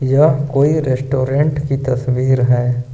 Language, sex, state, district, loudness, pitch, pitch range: Hindi, male, Jharkhand, Ranchi, -15 LUFS, 135 Hz, 125-145 Hz